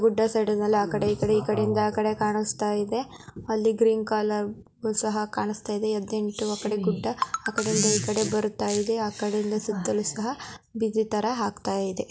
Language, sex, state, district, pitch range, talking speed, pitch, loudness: Kannada, female, Karnataka, Mysore, 210-220 Hz, 205 wpm, 215 Hz, -26 LUFS